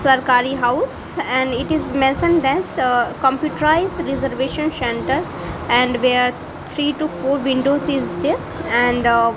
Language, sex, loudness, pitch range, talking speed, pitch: English, female, -18 LUFS, 250-300 Hz, 140 wpm, 270 Hz